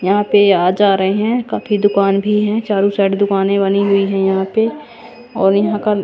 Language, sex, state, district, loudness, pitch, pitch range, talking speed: Hindi, female, Chandigarh, Chandigarh, -14 LUFS, 200 Hz, 195-210 Hz, 210 wpm